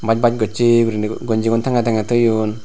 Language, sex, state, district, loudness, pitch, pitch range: Chakma, male, Tripura, Unakoti, -17 LUFS, 115 Hz, 110-120 Hz